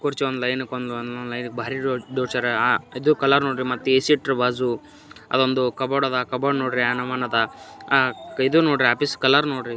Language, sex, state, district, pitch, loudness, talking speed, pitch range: Kannada, male, Karnataka, Gulbarga, 130 Hz, -22 LUFS, 195 wpm, 125-135 Hz